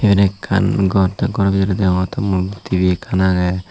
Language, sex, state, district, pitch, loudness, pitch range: Chakma, male, Tripura, Unakoti, 95 Hz, -17 LUFS, 90-100 Hz